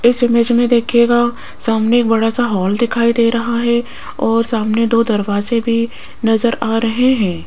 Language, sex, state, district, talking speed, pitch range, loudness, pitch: Hindi, female, Rajasthan, Jaipur, 170 wpm, 225-235 Hz, -15 LUFS, 235 Hz